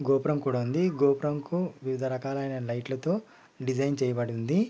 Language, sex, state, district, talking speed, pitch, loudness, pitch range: Telugu, male, Andhra Pradesh, Guntur, 140 wpm, 135 Hz, -29 LUFS, 130-155 Hz